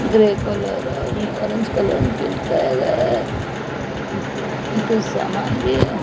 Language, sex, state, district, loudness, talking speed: Hindi, female, Odisha, Malkangiri, -20 LUFS, 50 wpm